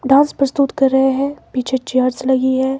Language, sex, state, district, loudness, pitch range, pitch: Hindi, male, Himachal Pradesh, Shimla, -16 LUFS, 260-275 Hz, 265 Hz